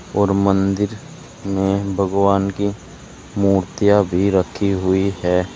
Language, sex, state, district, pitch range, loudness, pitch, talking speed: Hindi, male, Uttar Pradesh, Saharanpur, 95-100 Hz, -18 LUFS, 100 Hz, 110 wpm